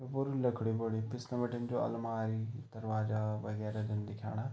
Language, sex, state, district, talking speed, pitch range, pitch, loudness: Garhwali, male, Uttarakhand, Tehri Garhwal, 160 wpm, 110-120 Hz, 110 Hz, -37 LUFS